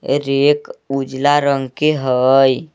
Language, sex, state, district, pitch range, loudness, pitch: Magahi, male, Jharkhand, Palamu, 135-145 Hz, -16 LUFS, 135 Hz